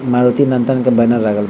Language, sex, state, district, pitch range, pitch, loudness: Bhojpuri, male, Bihar, Saran, 115-130 Hz, 125 Hz, -13 LUFS